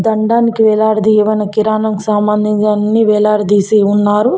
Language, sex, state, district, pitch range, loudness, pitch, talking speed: Telugu, female, Telangana, Mahabubabad, 210-215 Hz, -12 LUFS, 215 Hz, 95 wpm